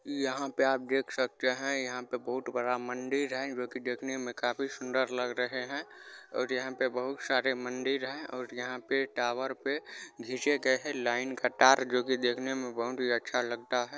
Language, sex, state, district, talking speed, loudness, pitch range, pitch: Hindi, male, Bihar, Supaul, 205 wpm, -32 LUFS, 125-130 Hz, 130 Hz